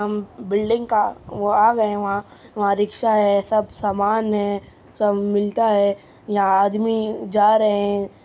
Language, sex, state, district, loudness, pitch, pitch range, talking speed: Hindi, male, Uttar Pradesh, Muzaffarnagar, -20 LUFS, 205 Hz, 200-215 Hz, 140 wpm